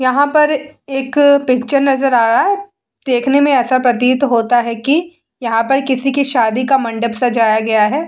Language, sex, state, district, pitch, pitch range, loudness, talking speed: Hindi, female, Bihar, Vaishali, 265 Hz, 240-285 Hz, -14 LUFS, 195 wpm